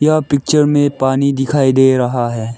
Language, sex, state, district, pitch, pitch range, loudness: Hindi, male, Arunachal Pradesh, Lower Dibang Valley, 135 Hz, 130-145 Hz, -13 LUFS